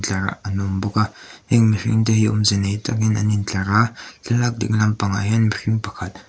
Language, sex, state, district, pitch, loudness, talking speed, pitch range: Mizo, male, Mizoram, Aizawl, 105 Hz, -20 LUFS, 220 wpm, 100-110 Hz